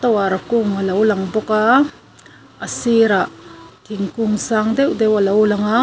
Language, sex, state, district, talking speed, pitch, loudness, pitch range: Mizo, female, Mizoram, Aizawl, 175 wpm, 215 Hz, -17 LUFS, 205-230 Hz